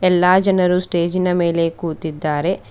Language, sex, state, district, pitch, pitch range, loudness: Kannada, female, Karnataka, Bidar, 180 Hz, 165-185 Hz, -17 LUFS